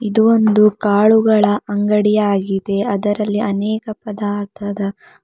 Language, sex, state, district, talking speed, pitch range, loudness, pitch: Kannada, female, Karnataka, Bidar, 90 wpm, 205-215 Hz, -16 LUFS, 210 Hz